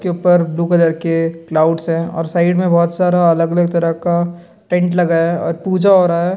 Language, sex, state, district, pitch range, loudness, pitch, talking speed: Hindi, male, Bihar, Gaya, 165-180 Hz, -15 LUFS, 170 Hz, 215 wpm